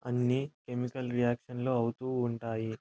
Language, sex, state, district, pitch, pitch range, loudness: Telugu, male, Andhra Pradesh, Anantapur, 125 Hz, 120-125 Hz, -33 LUFS